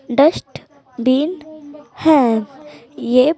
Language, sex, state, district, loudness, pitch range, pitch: Hindi, female, Chhattisgarh, Raipur, -16 LUFS, 255-305 Hz, 285 Hz